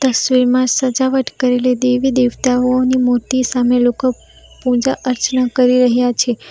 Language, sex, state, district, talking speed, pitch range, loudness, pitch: Gujarati, female, Gujarat, Valsad, 130 wpm, 245-255 Hz, -15 LUFS, 250 Hz